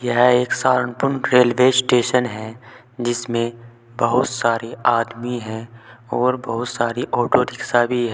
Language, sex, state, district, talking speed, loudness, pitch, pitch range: Hindi, male, Uttar Pradesh, Saharanpur, 135 wpm, -19 LUFS, 120 Hz, 115-125 Hz